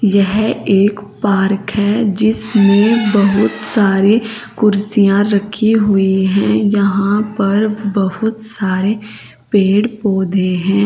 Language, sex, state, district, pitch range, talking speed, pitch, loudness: Hindi, female, Uttar Pradesh, Saharanpur, 195-215 Hz, 100 wpm, 205 Hz, -14 LUFS